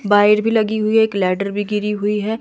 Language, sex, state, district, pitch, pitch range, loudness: Hindi, female, Himachal Pradesh, Shimla, 210 Hz, 205-220 Hz, -17 LUFS